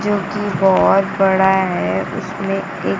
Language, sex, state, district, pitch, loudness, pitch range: Hindi, female, Bihar, Kaimur, 195 Hz, -16 LUFS, 190-195 Hz